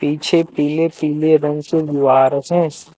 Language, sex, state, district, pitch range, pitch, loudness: Hindi, male, Jharkhand, Deoghar, 145-160 Hz, 155 Hz, -16 LUFS